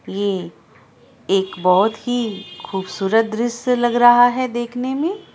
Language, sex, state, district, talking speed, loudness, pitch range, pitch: Hindi, female, Bihar, Araria, 135 wpm, -18 LUFS, 195-245 Hz, 225 Hz